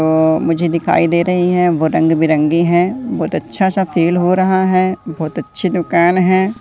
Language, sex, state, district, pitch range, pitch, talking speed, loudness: Hindi, male, Madhya Pradesh, Katni, 165-185 Hz, 175 Hz, 190 wpm, -14 LUFS